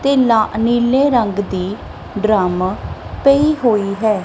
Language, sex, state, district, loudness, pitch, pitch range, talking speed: Punjabi, female, Punjab, Kapurthala, -15 LUFS, 220 Hz, 200-255 Hz, 125 wpm